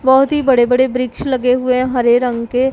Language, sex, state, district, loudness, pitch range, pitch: Hindi, female, Punjab, Pathankot, -14 LUFS, 245-260 Hz, 255 Hz